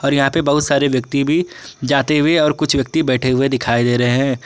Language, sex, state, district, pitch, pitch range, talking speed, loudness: Hindi, male, Jharkhand, Ranchi, 140 Hz, 130-150 Hz, 240 wpm, -16 LUFS